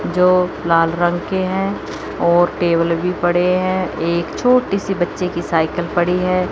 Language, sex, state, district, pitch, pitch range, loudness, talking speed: Hindi, female, Chandigarh, Chandigarh, 175 Hz, 170-185 Hz, -17 LUFS, 165 wpm